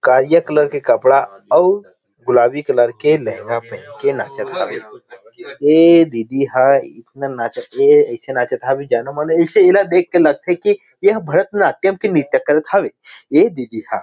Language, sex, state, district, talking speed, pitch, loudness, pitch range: Chhattisgarhi, male, Chhattisgarh, Rajnandgaon, 170 wpm, 155 Hz, -15 LUFS, 135-200 Hz